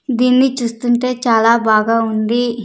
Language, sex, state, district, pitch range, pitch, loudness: Telugu, female, Andhra Pradesh, Sri Satya Sai, 225-250 Hz, 235 Hz, -14 LUFS